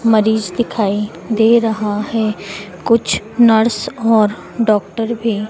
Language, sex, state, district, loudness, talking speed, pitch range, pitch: Hindi, female, Madhya Pradesh, Dhar, -15 LUFS, 110 wpm, 210-230 Hz, 220 Hz